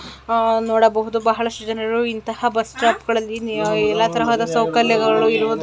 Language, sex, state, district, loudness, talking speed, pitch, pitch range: Kannada, female, Karnataka, Belgaum, -19 LUFS, 140 wpm, 225 Hz, 225-230 Hz